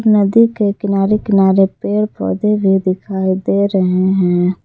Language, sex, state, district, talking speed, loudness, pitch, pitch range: Hindi, female, Jharkhand, Palamu, 140 wpm, -14 LUFS, 195 Hz, 190-210 Hz